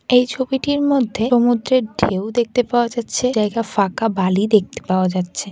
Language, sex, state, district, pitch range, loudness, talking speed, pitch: Bengali, female, West Bengal, Kolkata, 200-250 Hz, -18 LUFS, 165 wpm, 230 Hz